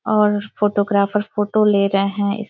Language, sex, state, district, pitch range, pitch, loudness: Hindi, female, Jharkhand, Sahebganj, 200-210 Hz, 205 Hz, -18 LUFS